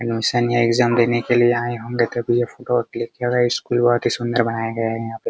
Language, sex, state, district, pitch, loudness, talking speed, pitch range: Hindi, male, Bihar, Araria, 120 Hz, -19 LUFS, 270 wpm, 115-120 Hz